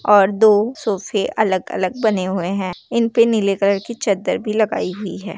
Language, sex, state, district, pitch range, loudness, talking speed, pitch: Hindi, female, Bihar, Saharsa, 190-220 Hz, -18 LUFS, 180 wpm, 205 Hz